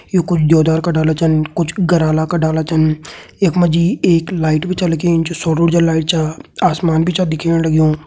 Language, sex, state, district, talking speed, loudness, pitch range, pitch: Hindi, male, Uttarakhand, Tehri Garhwal, 215 wpm, -15 LUFS, 160-170 Hz, 165 Hz